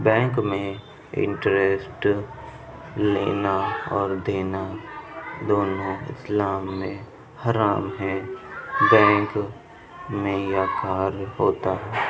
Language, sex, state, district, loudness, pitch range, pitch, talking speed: Hindi, male, Uttar Pradesh, Budaun, -24 LUFS, 95-105 Hz, 100 Hz, 85 wpm